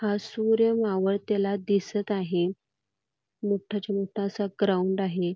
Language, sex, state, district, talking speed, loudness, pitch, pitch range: Marathi, female, Karnataka, Belgaum, 110 wpm, -27 LUFS, 200 Hz, 185-205 Hz